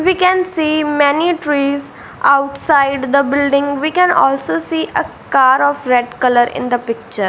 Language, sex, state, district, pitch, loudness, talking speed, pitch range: English, female, Punjab, Fazilka, 280 Hz, -14 LUFS, 165 wpm, 260-315 Hz